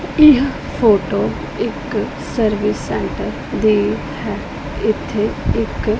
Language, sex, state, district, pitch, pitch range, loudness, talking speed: Punjabi, female, Punjab, Pathankot, 220 Hz, 210-275 Hz, -18 LUFS, 90 wpm